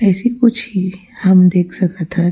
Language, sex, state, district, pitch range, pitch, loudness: Chhattisgarhi, female, Chhattisgarh, Rajnandgaon, 180-220 Hz, 185 Hz, -14 LUFS